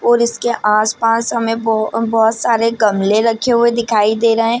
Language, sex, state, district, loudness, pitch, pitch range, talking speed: Hindi, female, Bihar, Madhepura, -14 LUFS, 230 Hz, 220-235 Hz, 210 wpm